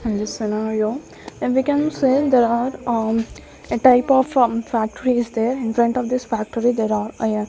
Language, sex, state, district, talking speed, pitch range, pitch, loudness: English, female, Maharashtra, Gondia, 170 wpm, 220-250 Hz, 235 Hz, -19 LUFS